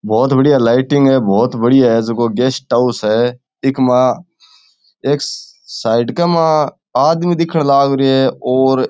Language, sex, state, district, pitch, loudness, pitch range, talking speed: Rajasthani, male, Rajasthan, Churu, 130 Hz, -13 LUFS, 120-145 Hz, 160 wpm